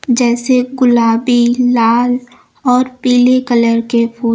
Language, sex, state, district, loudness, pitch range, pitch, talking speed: Hindi, female, Uttar Pradesh, Lucknow, -12 LUFS, 235-250 Hz, 245 Hz, 110 wpm